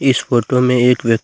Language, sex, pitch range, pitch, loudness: Hindi, male, 120-125 Hz, 125 Hz, -14 LUFS